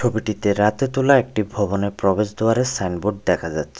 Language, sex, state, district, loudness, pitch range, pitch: Bengali, male, Tripura, West Tripura, -20 LUFS, 100-115 Hz, 105 Hz